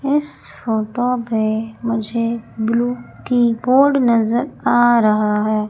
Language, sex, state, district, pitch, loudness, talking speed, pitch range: Hindi, female, Madhya Pradesh, Umaria, 235 Hz, -17 LUFS, 105 wpm, 220-245 Hz